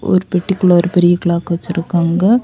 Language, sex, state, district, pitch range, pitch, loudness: Tamil, female, Tamil Nadu, Kanyakumari, 175-190 Hz, 175 Hz, -14 LUFS